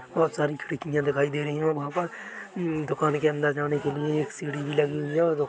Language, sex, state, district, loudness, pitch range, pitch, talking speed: Hindi, male, Chhattisgarh, Korba, -27 LUFS, 145-155 Hz, 150 Hz, 250 wpm